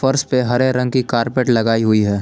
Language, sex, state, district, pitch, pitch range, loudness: Hindi, male, Jharkhand, Palamu, 125 Hz, 115-130 Hz, -16 LUFS